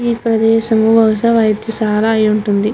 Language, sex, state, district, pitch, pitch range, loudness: Telugu, female, Andhra Pradesh, Guntur, 220 Hz, 215-225 Hz, -13 LUFS